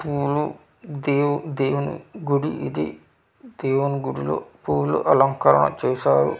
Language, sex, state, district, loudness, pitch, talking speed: Telugu, male, Andhra Pradesh, Manyam, -22 LUFS, 135 Hz, 110 wpm